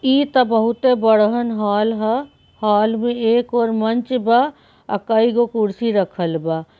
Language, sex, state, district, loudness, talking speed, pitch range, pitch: Bhojpuri, female, Bihar, Saran, -18 LUFS, 150 wpm, 210-240 Hz, 225 Hz